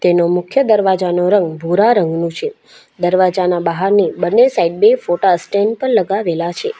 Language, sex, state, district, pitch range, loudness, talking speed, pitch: Gujarati, female, Gujarat, Valsad, 175-235 Hz, -14 LUFS, 150 wpm, 185 Hz